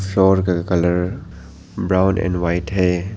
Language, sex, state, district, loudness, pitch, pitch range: Hindi, male, Arunachal Pradesh, Papum Pare, -18 LUFS, 90 Hz, 90-95 Hz